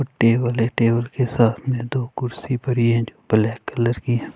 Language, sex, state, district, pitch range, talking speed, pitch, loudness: Hindi, male, Chhattisgarh, Raipur, 115-125 Hz, 190 wpm, 120 Hz, -21 LUFS